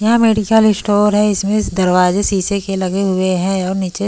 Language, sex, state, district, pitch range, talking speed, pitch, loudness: Hindi, female, Haryana, Charkhi Dadri, 185-210 Hz, 190 wpm, 200 Hz, -14 LUFS